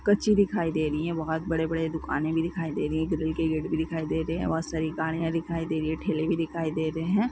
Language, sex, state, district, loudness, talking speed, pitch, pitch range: Hindi, female, Rajasthan, Nagaur, -28 LUFS, 285 wpm, 160 Hz, 160-165 Hz